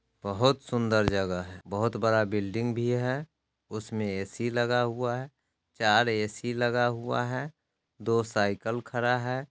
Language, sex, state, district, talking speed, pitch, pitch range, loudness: Hindi, male, Bihar, Sitamarhi, 145 wpm, 115 Hz, 105-120 Hz, -29 LUFS